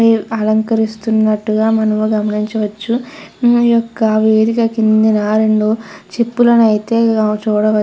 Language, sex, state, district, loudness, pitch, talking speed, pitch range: Telugu, female, Andhra Pradesh, Krishna, -14 LUFS, 220 Hz, 90 wpm, 215-230 Hz